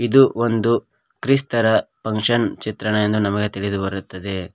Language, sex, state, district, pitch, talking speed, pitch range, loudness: Kannada, male, Karnataka, Koppal, 110 Hz, 120 wpm, 100-120 Hz, -19 LUFS